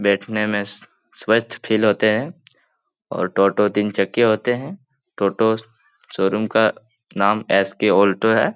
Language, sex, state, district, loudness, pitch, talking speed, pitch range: Hindi, male, Bihar, Lakhisarai, -19 LUFS, 110 Hz, 140 wpm, 100-110 Hz